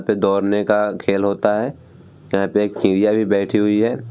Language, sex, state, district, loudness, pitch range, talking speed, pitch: Hindi, male, Bihar, Vaishali, -18 LUFS, 100-110 Hz, 235 wpm, 105 Hz